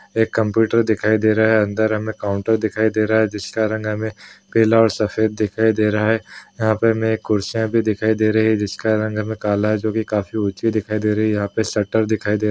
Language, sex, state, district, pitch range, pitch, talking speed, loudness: Hindi, male, Uttar Pradesh, Muzaffarnagar, 105-110 Hz, 110 Hz, 250 wpm, -19 LUFS